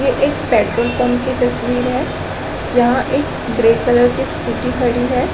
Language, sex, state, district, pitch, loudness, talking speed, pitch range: Hindi, female, Chhattisgarh, Raigarh, 245 Hz, -16 LUFS, 170 wpm, 245-250 Hz